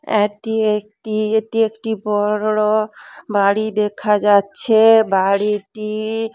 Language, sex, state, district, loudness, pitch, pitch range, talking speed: Bengali, female, West Bengal, Dakshin Dinajpur, -17 LUFS, 215 Hz, 210-220 Hz, 95 wpm